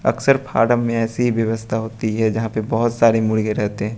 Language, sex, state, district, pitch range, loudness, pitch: Hindi, male, Bihar, West Champaran, 110-115 Hz, -19 LUFS, 110 Hz